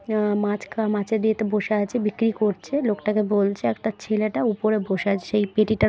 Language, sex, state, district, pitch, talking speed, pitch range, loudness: Bengali, female, West Bengal, Purulia, 215 Hz, 185 wpm, 205-220 Hz, -23 LUFS